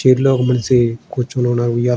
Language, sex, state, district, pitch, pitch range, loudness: Telugu, male, Andhra Pradesh, Srikakulam, 125 Hz, 120-130 Hz, -16 LUFS